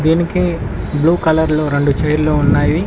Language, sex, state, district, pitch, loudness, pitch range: Telugu, male, Telangana, Mahabubabad, 155 Hz, -15 LUFS, 145-165 Hz